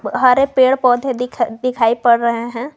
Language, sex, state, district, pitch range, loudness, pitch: Hindi, female, Jharkhand, Garhwa, 235-260 Hz, -15 LUFS, 250 Hz